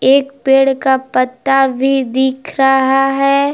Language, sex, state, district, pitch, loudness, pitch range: Hindi, female, Jharkhand, Palamu, 270 Hz, -13 LUFS, 265-275 Hz